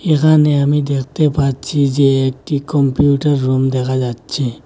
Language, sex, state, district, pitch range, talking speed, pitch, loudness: Bengali, male, Assam, Hailakandi, 130-145 Hz, 130 wpm, 140 Hz, -15 LUFS